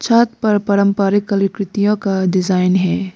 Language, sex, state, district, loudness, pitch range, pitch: Hindi, female, Arunachal Pradesh, Lower Dibang Valley, -16 LUFS, 185-205 Hz, 200 Hz